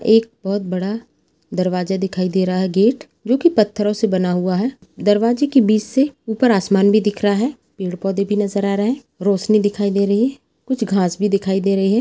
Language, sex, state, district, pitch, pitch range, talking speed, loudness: Hindi, female, Chhattisgarh, Rajnandgaon, 205 Hz, 195-225 Hz, 220 wpm, -18 LUFS